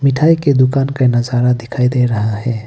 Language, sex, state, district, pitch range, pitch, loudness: Hindi, male, Arunachal Pradesh, Papum Pare, 120-135 Hz, 125 Hz, -14 LUFS